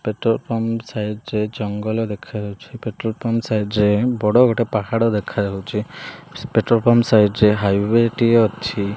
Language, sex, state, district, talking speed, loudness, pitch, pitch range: Odia, male, Odisha, Malkangiri, 140 wpm, -19 LUFS, 110 Hz, 105-115 Hz